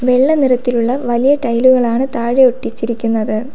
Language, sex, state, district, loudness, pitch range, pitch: Malayalam, female, Kerala, Kollam, -14 LUFS, 235-260 Hz, 245 Hz